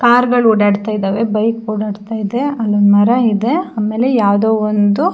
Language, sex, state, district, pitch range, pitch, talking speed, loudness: Kannada, female, Karnataka, Shimoga, 210-240 Hz, 220 Hz, 165 wpm, -14 LUFS